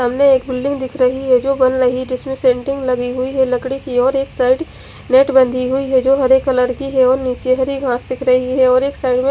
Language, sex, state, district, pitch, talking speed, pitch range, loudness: Hindi, female, Odisha, Khordha, 260 Hz, 245 wpm, 255-265 Hz, -15 LUFS